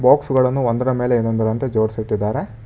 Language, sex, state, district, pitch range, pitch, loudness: Kannada, male, Karnataka, Bangalore, 110-130 Hz, 115 Hz, -19 LUFS